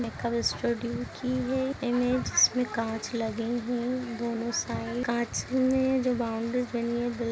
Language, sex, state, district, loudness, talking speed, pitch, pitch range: Hindi, female, Bihar, Vaishali, -29 LUFS, 145 wpm, 240 Hz, 235-250 Hz